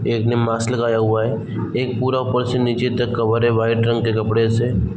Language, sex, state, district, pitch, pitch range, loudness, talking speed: Hindi, male, Bihar, East Champaran, 115 Hz, 115-120 Hz, -19 LUFS, 230 wpm